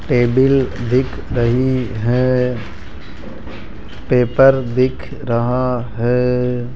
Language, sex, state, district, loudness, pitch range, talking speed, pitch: Hindi, male, Rajasthan, Jaipur, -16 LUFS, 120-130 Hz, 70 wpm, 125 Hz